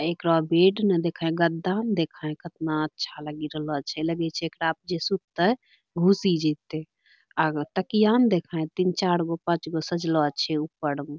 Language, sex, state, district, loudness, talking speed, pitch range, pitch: Angika, female, Bihar, Bhagalpur, -25 LUFS, 175 wpm, 155-180 Hz, 165 Hz